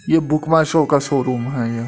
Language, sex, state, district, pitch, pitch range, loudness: Hindi, male, Uttar Pradesh, Etah, 145 Hz, 125-160 Hz, -17 LUFS